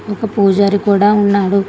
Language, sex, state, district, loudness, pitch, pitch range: Telugu, female, Telangana, Hyderabad, -13 LUFS, 200 Hz, 200-205 Hz